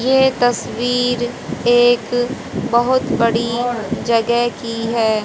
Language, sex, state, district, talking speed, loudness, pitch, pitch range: Hindi, female, Haryana, Jhajjar, 90 wpm, -17 LUFS, 240 Hz, 230-245 Hz